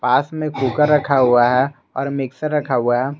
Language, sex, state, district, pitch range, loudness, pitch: Hindi, male, Jharkhand, Garhwa, 130-150 Hz, -18 LUFS, 135 Hz